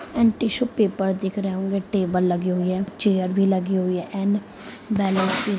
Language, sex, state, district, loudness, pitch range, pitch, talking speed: Hindi, female, Uttar Pradesh, Muzaffarnagar, -22 LUFS, 185-205 Hz, 195 Hz, 205 wpm